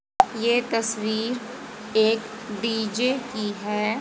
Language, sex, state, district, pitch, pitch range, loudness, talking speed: Hindi, female, Haryana, Jhajjar, 225 Hz, 215-240 Hz, -24 LUFS, 90 wpm